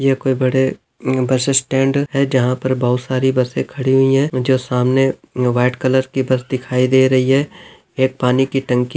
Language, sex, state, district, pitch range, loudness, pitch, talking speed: Hindi, male, Chhattisgarh, Bilaspur, 125-135 Hz, -16 LUFS, 130 Hz, 200 wpm